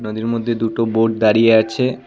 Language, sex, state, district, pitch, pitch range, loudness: Bengali, male, West Bengal, Cooch Behar, 115 Hz, 110-115 Hz, -16 LUFS